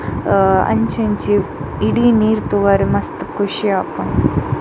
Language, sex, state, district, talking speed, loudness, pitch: Tulu, female, Karnataka, Dakshina Kannada, 115 wpm, -16 LUFS, 200 Hz